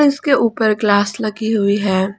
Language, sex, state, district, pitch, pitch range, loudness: Hindi, female, Jharkhand, Ranchi, 215 Hz, 205-230 Hz, -16 LUFS